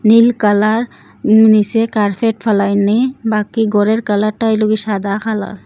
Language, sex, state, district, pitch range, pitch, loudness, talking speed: Bengali, female, Assam, Hailakandi, 205-225 Hz, 215 Hz, -14 LUFS, 150 wpm